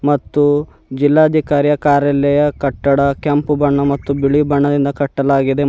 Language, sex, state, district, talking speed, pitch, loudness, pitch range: Kannada, male, Karnataka, Bidar, 115 wpm, 145 Hz, -14 LUFS, 140-145 Hz